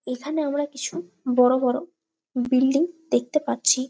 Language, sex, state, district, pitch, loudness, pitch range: Bengali, female, West Bengal, Malda, 260 Hz, -23 LUFS, 250-295 Hz